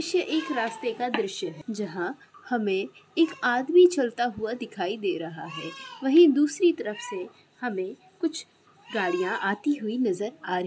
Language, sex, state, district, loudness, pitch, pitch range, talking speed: Hindi, female, Chhattisgarh, Raigarh, -26 LUFS, 245 Hz, 210-330 Hz, 155 wpm